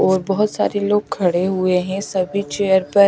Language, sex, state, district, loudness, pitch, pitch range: Hindi, female, Chhattisgarh, Raipur, -19 LUFS, 195 Hz, 185-200 Hz